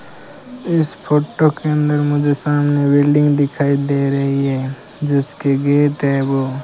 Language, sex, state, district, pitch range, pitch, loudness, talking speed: Hindi, male, Rajasthan, Bikaner, 140-150 Hz, 145 Hz, -16 LUFS, 145 wpm